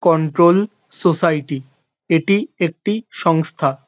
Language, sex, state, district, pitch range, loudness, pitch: Bengali, male, West Bengal, North 24 Parganas, 150-190 Hz, -18 LUFS, 165 Hz